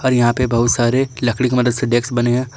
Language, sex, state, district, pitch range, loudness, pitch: Hindi, male, Jharkhand, Garhwa, 120-125 Hz, -16 LUFS, 120 Hz